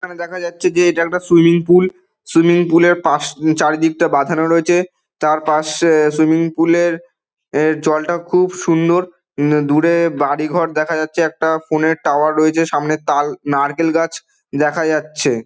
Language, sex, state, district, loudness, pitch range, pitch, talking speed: Bengali, male, West Bengal, Dakshin Dinajpur, -15 LUFS, 155-170 Hz, 165 Hz, 165 wpm